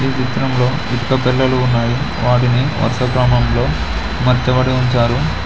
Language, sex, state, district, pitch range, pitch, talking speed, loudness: Telugu, male, Telangana, Mahabubabad, 120-130 Hz, 125 Hz, 110 wpm, -15 LUFS